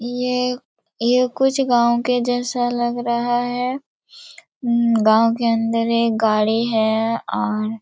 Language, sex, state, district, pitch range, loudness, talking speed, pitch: Hindi, female, Chhattisgarh, Raigarh, 230-245 Hz, -19 LUFS, 115 wpm, 235 Hz